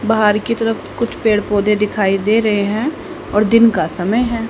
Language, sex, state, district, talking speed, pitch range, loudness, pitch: Hindi, female, Haryana, Rohtak, 200 wpm, 210-230 Hz, -16 LUFS, 220 Hz